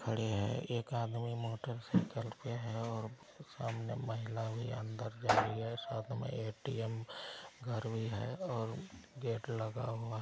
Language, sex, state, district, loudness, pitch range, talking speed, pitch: Hindi, male, Bihar, Araria, -39 LUFS, 110-120 Hz, 155 wpm, 115 Hz